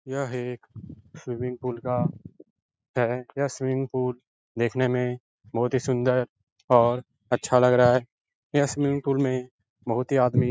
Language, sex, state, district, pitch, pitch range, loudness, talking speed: Hindi, male, Uttar Pradesh, Etah, 125 Hz, 120-130 Hz, -25 LUFS, 155 wpm